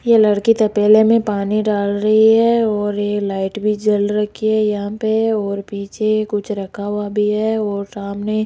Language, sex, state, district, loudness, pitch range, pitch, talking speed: Hindi, female, Rajasthan, Jaipur, -17 LUFS, 205-215 Hz, 210 Hz, 190 wpm